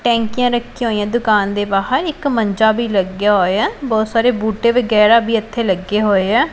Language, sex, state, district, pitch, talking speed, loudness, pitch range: Punjabi, female, Punjab, Pathankot, 220 Hz, 185 wpm, -15 LUFS, 205-235 Hz